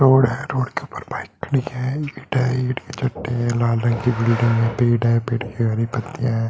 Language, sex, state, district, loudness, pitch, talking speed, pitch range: Hindi, male, Uttar Pradesh, Hamirpur, -21 LUFS, 120 Hz, 265 wpm, 115-130 Hz